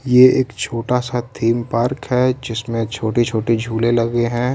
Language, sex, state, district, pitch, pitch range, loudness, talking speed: Hindi, male, Uttar Pradesh, Varanasi, 120 Hz, 115-125 Hz, -18 LUFS, 170 wpm